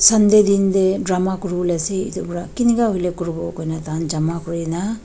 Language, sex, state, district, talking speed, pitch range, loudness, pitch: Nagamese, female, Nagaland, Dimapur, 200 wpm, 165-200 Hz, -19 LUFS, 180 Hz